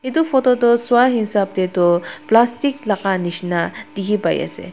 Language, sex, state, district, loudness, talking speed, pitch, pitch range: Nagamese, female, Nagaland, Dimapur, -17 LUFS, 165 wpm, 210 Hz, 185-245 Hz